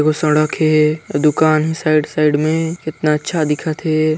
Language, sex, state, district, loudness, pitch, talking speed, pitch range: Chhattisgarhi, male, Chhattisgarh, Sarguja, -16 LUFS, 155 Hz, 170 wpm, 150-155 Hz